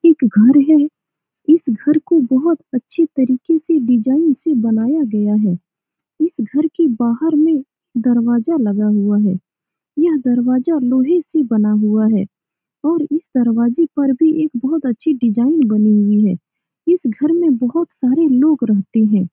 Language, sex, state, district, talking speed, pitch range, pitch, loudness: Hindi, female, Bihar, Saran, 155 wpm, 225-310 Hz, 260 Hz, -15 LUFS